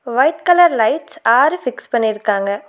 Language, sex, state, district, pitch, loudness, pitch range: Tamil, female, Tamil Nadu, Nilgiris, 250 Hz, -15 LUFS, 220-320 Hz